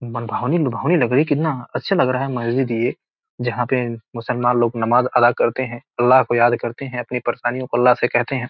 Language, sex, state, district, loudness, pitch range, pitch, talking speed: Hindi, male, Bihar, Gopalganj, -19 LUFS, 120-130 Hz, 125 Hz, 190 wpm